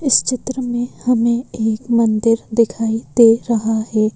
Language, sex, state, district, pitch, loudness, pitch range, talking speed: Hindi, female, Madhya Pradesh, Bhopal, 230 Hz, -17 LUFS, 225-245 Hz, 145 wpm